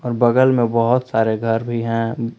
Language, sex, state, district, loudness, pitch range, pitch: Hindi, male, Jharkhand, Palamu, -18 LUFS, 115-120 Hz, 115 Hz